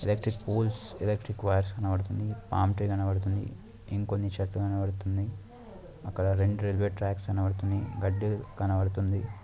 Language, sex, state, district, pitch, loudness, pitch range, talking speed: Telugu, male, Telangana, Nalgonda, 100 Hz, -31 LUFS, 95-105 Hz, 100 wpm